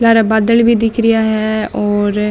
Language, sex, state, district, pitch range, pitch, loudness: Marwari, female, Rajasthan, Nagaur, 215-230 Hz, 220 Hz, -13 LUFS